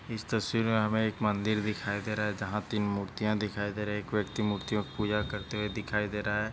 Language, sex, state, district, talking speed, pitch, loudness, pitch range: Hindi, male, Maharashtra, Dhule, 230 wpm, 105 Hz, -32 LUFS, 105-110 Hz